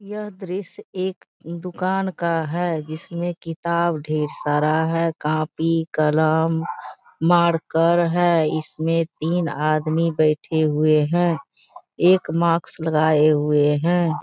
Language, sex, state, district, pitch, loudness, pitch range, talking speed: Hindi, female, Bihar, Begusarai, 165 Hz, -21 LUFS, 155-175 Hz, 110 wpm